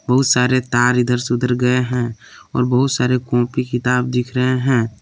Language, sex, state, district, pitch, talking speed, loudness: Hindi, male, Jharkhand, Palamu, 125 Hz, 190 wpm, -17 LUFS